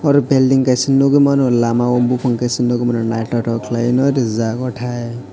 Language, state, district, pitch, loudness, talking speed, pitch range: Kokborok, Tripura, West Tripura, 120 Hz, -16 LUFS, 190 wpm, 120-130 Hz